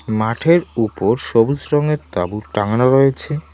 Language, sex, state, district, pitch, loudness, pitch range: Bengali, male, West Bengal, Cooch Behar, 125 Hz, -16 LUFS, 110-150 Hz